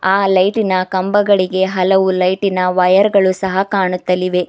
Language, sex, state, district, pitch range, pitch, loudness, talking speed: Kannada, female, Karnataka, Bidar, 185-195 Hz, 190 Hz, -14 LUFS, 120 wpm